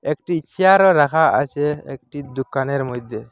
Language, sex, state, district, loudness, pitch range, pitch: Bengali, male, Assam, Hailakandi, -18 LUFS, 135-160 Hz, 145 Hz